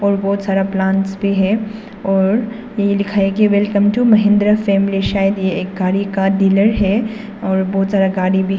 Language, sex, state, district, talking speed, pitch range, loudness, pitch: Hindi, female, Arunachal Pradesh, Papum Pare, 190 wpm, 195-210 Hz, -16 LUFS, 200 Hz